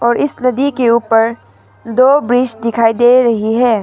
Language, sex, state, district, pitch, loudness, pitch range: Hindi, female, Arunachal Pradesh, Papum Pare, 240 Hz, -12 LUFS, 230-250 Hz